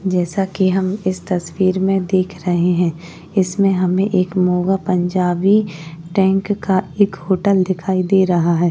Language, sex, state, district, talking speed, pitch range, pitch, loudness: Hindi, female, Uttar Pradesh, Jyotiba Phule Nagar, 145 wpm, 180-195 Hz, 185 Hz, -17 LUFS